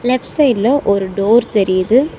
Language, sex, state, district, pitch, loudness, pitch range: Tamil, female, Tamil Nadu, Chennai, 230 Hz, -14 LUFS, 200-255 Hz